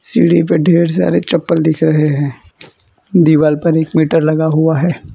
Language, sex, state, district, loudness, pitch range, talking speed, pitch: Hindi, male, Gujarat, Valsad, -13 LUFS, 155-165 Hz, 175 wpm, 160 Hz